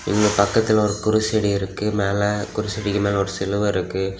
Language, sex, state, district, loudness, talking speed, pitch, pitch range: Tamil, male, Tamil Nadu, Kanyakumari, -21 LUFS, 155 wpm, 105 Hz, 100-105 Hz